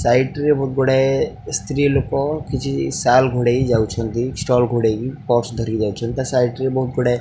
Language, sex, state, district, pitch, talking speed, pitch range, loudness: Odia, male, Odisha, Khordha, 125 Hz, 175 wpm, 120-135 Hz, -19 LUFS